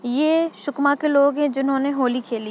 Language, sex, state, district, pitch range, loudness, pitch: Hindi, female, Chhattisgarh, Sukma, 255-290 Hz, -20 LUFS, 280 Hz